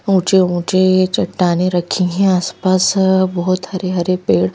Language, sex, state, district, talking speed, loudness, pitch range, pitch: Hindi, female, Madhya Pradesh, Bhopal, 120 wpm, -15 LUFS, 180-185 Hz, 185 Hz